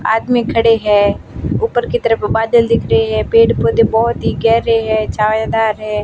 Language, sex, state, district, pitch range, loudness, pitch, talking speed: Hindi, female, Rajasthan, Barmer, 210-230 Hz, -14 LUFS, 225 Hz, 180 wpm